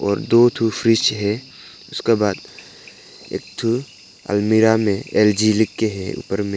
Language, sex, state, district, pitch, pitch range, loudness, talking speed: Hindi, male, Arunachal Pradesh, Papum Pare, 110 Hz, 100-115 Hz, -18 LUFS, 145 wpm